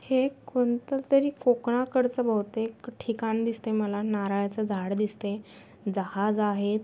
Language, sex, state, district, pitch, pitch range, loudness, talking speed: Marathi, female, Maharashtra, Sindhudurg, 220 Hz, 205-245 Hz, -28 LUFS, 115 wpm